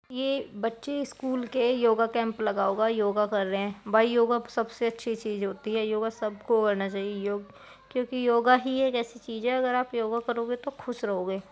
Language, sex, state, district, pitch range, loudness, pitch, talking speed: Hindi, female, Uttar Pradesh, Jyotiba Phule Nagar, 210-245 Hz, -28 LUFS, 230 Hz, 200 wpm